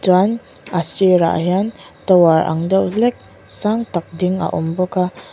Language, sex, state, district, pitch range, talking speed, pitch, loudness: Mizo, female, Mizoram, Aizawl, 175-195 Hz, 170 wpm, 185 Hz, -17 LUFS